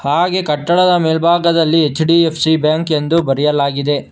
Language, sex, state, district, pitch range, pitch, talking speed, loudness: Kannada, male, Karnataka, Bangalore, 150-170 Hz, 160 Hz, 100 wpm, -14 LUFS